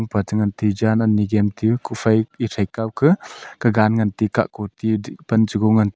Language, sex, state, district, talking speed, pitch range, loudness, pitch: Wancho, male, Arunachal Pradesh, Longding, 160 wpm, 105-115 Hz, -20 LUFS, 110 Hz